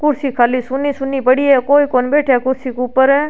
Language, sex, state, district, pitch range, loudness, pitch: Rajasthani, female, Rajasthan, Churu, 255-285 Hz, -14 LUFS, 270 Hz